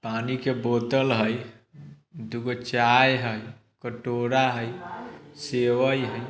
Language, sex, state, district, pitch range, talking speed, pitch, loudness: Bajjika, male, Bihar, Vaishali, 120-130 Hz, 115 wpm, 120 Hz, -25 LUFS